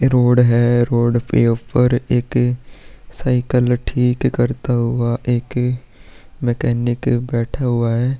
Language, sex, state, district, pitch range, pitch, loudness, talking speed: Hindi, male, Bihar, Vaishali, 120-125 Hz, 120 Hz, -17 LUFS, 110 wpm